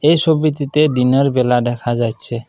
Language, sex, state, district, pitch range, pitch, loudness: Bengali, male, Assam, Kamrup Metropolitan, 120-150 Hz, 130 Hz, -15 LUFS